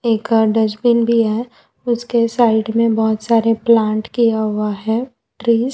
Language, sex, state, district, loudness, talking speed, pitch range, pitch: Hindi, female, Gujarat, Valsad, -16 LUFS, 165 wpm, 220-235 Hz, 230 Hz